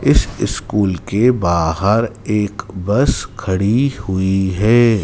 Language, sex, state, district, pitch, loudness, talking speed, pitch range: Hindi, male, Madhya Pradesh, Dhar, 105 Hz, -17 LUFS, 105 wpm, 95-115 Hz